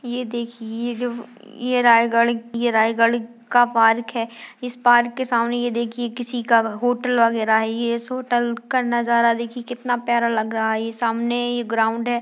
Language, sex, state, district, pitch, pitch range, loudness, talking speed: Hindi, female, Chhattisgarh, Raigarh, 235 Hz, 230-240 Hz, -20 LUFS, 185 wpm